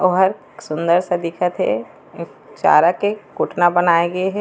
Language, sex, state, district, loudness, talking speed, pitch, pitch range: Chhattisgarhi, female, Chhattisgarh, Raigarh, -18 LUFS, 150 wpm, 180 Hz, 170-190 Hz